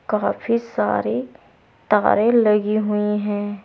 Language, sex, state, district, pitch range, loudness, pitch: Hindi, female, Uttar Pradesh, Saharanpur, 210-230 Hz, -20 LUFS, 210 Hz